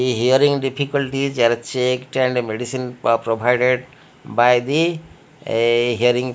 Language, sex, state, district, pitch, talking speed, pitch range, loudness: English, male, Odisha, Malkangiri, 125 Hz, 130 wpm, 120-135 Hz, -19 LUFS